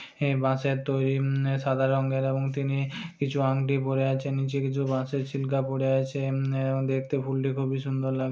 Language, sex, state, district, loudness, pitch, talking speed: Bajjika, male, Bihar, Vaishali, -27 LUFS, 135 Hz, 180 wpm